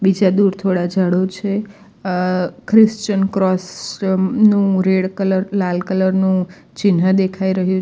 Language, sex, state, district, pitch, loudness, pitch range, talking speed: Gujarati, female, Gujarat, Valsad, 190 Hz, -17 LUFS, 185-200 Hz, 140 wpm